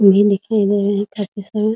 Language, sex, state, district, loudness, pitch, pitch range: Hindi, female, Bihar, Muzaffarpur, -17 LUFS, 205 Hz, 200-210 Hz